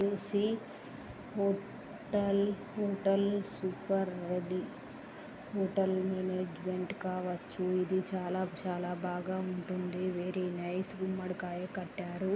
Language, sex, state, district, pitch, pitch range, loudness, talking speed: Telugu, female, Andhra Pradesh, Srikakulam, 185 Hz, 185-195 Hz, -35 LUFS, 85 wpm